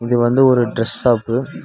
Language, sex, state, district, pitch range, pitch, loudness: Tamil, male, Tamil Nadu, Nilgiris, 115-125 Hz, 120 Hz, -16 LUFS